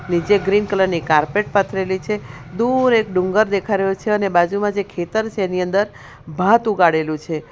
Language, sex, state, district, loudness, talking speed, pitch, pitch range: Gujarati, female, Gujarat, Valsad, -18 LUFS, 185 wpm, 195 Hz, 175-210 Hz